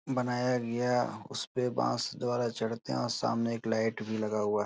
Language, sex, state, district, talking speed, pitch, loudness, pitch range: Hindi, male, Uttar Pradesh, Etah, 195 wpm, 115 Hz, -32 LUFS, 110-125 Hz